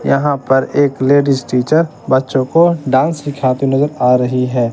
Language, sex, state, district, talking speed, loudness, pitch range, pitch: Hindi, male, Bihar, West Champaran, 165 wpm, -14 LUFS, 130-145 Hz, 135 Hz